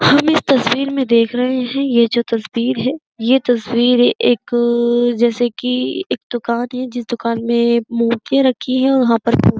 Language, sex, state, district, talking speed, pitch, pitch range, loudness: Hindi, female, Uttar Pradesh, Jyotiba Phule Nagar, 180 wpm, 240 Hz, 235-255 Hz, -16 LUFS